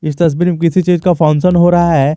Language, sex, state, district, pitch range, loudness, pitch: Hindi, male, Jharkhand, Garhwa, 155-180 Hz, -11 LUFS, 175 Hz